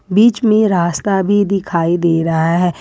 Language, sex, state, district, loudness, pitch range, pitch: Hindi, female, Jharkhand, Ranchi, -14 LUFS, 170-205 Hz, 185 Hz